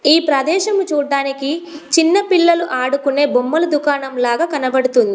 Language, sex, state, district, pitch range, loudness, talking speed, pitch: Telugu, female, Telangana, Komaram Bheem, 270-330 Hz, -16 LUFS, 105 wpm, 290 Hz